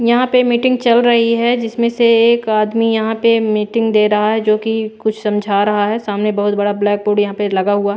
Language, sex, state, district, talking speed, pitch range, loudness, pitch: Hindi, female, Bihar, Patna, 240 wpm, 210-230 Hz, -14 LUFS, 220 Hz